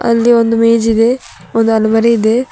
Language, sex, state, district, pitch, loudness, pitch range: Kannada, female, Karnataka, Bidar, 230 Hz, -12 LUFS, 225-235 Hz